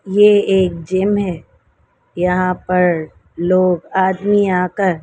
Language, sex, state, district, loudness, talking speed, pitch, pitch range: Hindi, female, Delhi, New Delhi, -16 LUFS, 105 wpm, 185 Hz, 180-195 Hz